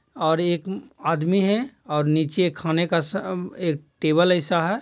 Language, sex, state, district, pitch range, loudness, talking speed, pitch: Hindi, male, Bihar, Jahanabad, 160-190 Hz, -23 LUFS, 175 wpm, 175 Hz